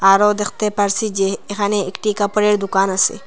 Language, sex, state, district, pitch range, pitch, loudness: Bengali, female, Assam, Hailakandi, 195-210 Hz, 205 Hz, -17 LUFS